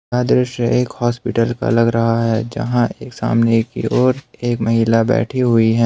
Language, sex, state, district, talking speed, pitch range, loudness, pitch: Hindi, male, Jharkhand, Ranchi, 185 wpm, 115-120 Hz, -17 LUFS, 115 Hz